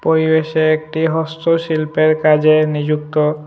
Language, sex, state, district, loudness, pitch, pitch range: Bengali, male, Tripura, West Tripura, -15 LUFS, 155 Hz, 155-160 Hz